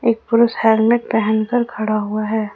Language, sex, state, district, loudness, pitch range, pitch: Hindi, female, Jharkhand, Ranchi, -17 LUFS, 215-230 Hz, 220 Hz